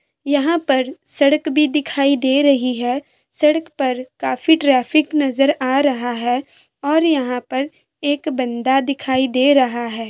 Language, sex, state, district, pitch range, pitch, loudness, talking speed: Hindi, female, Bihar, Gopalganj, 255-300 Hz, 275 Hz, -18 LUFS, 150 wpm